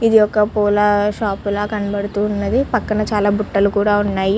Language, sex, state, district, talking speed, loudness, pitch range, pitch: Telugu, male, Andhra Pradesh, Guntur, 165 wpm, -17 LUFS, 205-210 Hz, 205 Hz